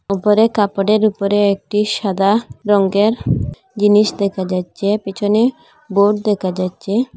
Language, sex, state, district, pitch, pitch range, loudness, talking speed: Bengali, female, Assam, Hailakandi, 205 Hz, 195-215 Hz, -16 LUFS, 110 wpm